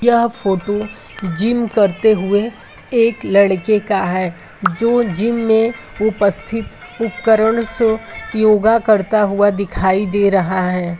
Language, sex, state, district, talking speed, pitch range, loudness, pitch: Bhojpuri, male, Uttar Pradesh, Gorakhpur, 120 wpm, 195-225 Hz, -16 LUFS, 215 Hz